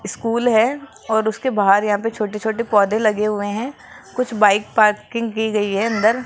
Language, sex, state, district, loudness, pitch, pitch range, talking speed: Hindi, female, Rajasthan, Jaipur, -18 LUFS, 220 Hz, 210-230 Hz, 190 wpm